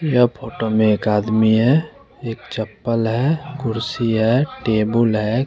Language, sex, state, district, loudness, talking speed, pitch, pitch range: Hindi, male, Bihar, West Champaran, -18 LUFS, 145 wpm, 115 Hz, 110-125 Hz